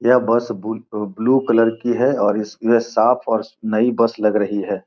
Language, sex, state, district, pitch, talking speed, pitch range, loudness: Hindi, male, Bihar, Gopalganj, 115 Hz, 195 wpm, 105-120 Hz, -18 LUFS